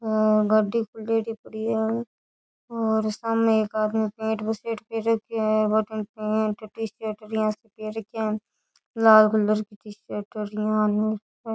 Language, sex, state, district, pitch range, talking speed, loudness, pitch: Rajasthani, female, Rajasthan, Churu, 215-225 Hz, 140 wpm, -24 LUFS, 215 Hz